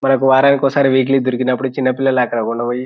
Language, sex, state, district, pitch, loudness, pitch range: Telugu, male, Telangana, Nalgonda, 130 Hz, -15 LUFS, 125-135 Hz